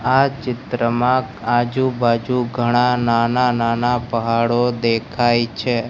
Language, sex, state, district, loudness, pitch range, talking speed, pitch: Gujarati, male, Gujarat, Gandhinagar, -18 LUFS, 115-125 Hz, 100 wpm, 120 Hz